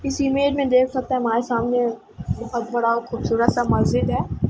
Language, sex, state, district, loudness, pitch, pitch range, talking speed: Hindi, female, Uttar Pradesh, Etah, -21 LUFS, 240 Hz, 235-260 Hz, 185 wpm